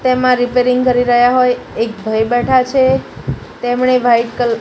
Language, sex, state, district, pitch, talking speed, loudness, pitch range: Gujarati, female, Gujarat, Gandhinagar, 245 Hz, 170 wpm, -13 LUFS, 240-255 Hz